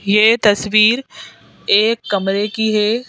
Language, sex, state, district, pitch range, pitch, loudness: Hindi, female, Madhya Pradesh, Bhopal, 205-225 Hz, 215 Hz, -15 LUFS